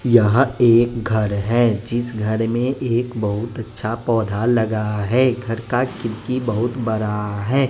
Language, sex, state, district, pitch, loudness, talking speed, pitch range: Hindi, male, Bihar, West Champaran, 115 Hz, -20 LUFS, 150 wpm, 110-120 Hz